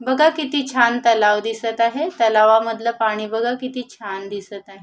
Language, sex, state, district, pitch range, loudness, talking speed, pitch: Marathi, female, Maharashtra, Sindhudurg, 215-250 Hz, -18 LUFS, 175 wpm, 230 Hz